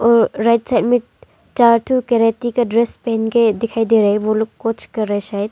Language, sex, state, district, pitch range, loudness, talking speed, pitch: Hindi, female, Arunachal Pradesh, Longding, 220-235 Hz, -16 LUFS, 240 wpm, 230 Hz